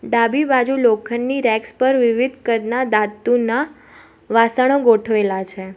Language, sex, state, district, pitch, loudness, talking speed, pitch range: Gujarati, female, Gujarat, Valsad, 235 Hz, -17 LUFS, 115 wpm, 220-255 Hz